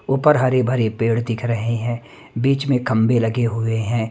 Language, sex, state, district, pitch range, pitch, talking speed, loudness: Hindi, male, Chhattisgarh, Raipur, 115-130 Hz, 120 Hz, 190 wpm, -19 LUFS